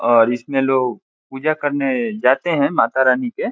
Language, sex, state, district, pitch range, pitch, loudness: Hindi, male, Bihar, Saran, 120-145 Hz, 130 Hz, -18 LUFS